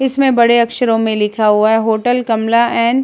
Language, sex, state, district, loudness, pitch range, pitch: Hindi, female, Uttar Pradesh, Jalaun, -13 LUFS, 220-245 Hz, 230 Hz